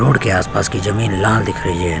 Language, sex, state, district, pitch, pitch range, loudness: Hindi, male, Chhattisgarh, Sukma, 100 Hz, 90-105 Hz, -16 LUFS